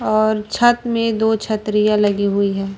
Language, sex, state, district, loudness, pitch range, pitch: Hindi, female, Chhattisgarh, Raipur, -17 LUFS, 205-220 Hz, 215 Hz